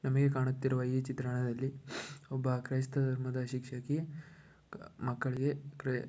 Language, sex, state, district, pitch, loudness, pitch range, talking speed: Kannada, male, Karnataka, Shimoga, 130 Hz, -36 LUFS, 130-140 Hz, 100 wpm